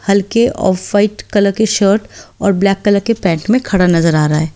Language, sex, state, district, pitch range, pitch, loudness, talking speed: Hindi, female, Delhi, New Delhi, 185-210 Hz, 200 Hz, -13 LUFS, 225 wpm